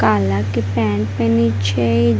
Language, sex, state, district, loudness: Maithili, female, Bihar, Madhepura, -17 LUFS